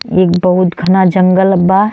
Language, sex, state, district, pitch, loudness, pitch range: Bhojpuri, female, Uttar Pradesh, Deoria, 185 Hz, -10 LUFS, 185-190 Hz